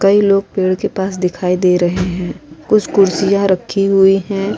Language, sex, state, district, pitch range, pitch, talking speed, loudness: Hindi, female, Uttar Pradesh, Hamirpur, 180-195 Hz, 190 Hz, 185 wpm, -14 LUFS